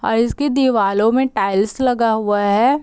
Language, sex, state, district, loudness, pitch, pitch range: Hindi, female, Bihar, Gopalganj, -17 LUFS, 225 Hz, 205-260 Hz